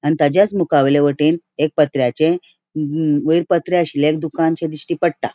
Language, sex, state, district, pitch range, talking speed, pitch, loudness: Konkani, female, Goa, North and South Goa, 150-170 Hz, 155 wpm, 160 Hz, -17 LUFS